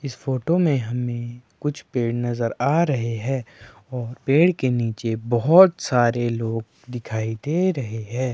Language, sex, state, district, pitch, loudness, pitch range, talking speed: Hindi, male, Himachal Pradesh, Shimla, 125 Hz, -22 LUFS, 115-140 Hz, 150 wpm